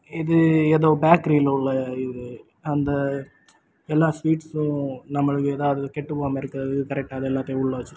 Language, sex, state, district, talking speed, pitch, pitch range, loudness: Tamil, male, Tamil Nadu, Kanyakumari, 120 wpm, 140 Hz, 135-155 Hz, -22 LUFS